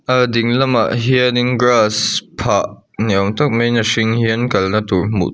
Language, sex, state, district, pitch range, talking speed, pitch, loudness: Mizo, male, Mizoram, Aizawl, 105-125 Hz, 190 wpm, 115 Hz, -15 LUFS